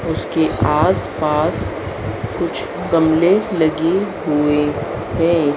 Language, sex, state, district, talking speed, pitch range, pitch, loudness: Hindi, female, Madhya Pradesh, Dhar, 85 wpm, 115-165 Hz, 150 Hz, -18 LUFS